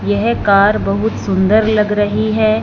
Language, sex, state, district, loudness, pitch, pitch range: Hindi, female, Punjab, Fazilka, -14 LUFS, 210 Hz, 205-220 Hz